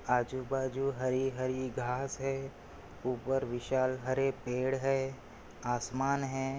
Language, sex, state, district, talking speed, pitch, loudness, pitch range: Hindi, male, Maharashtra, Pune, 100 wpm, 130 Hz, -34 LUFS, 125-135 Hz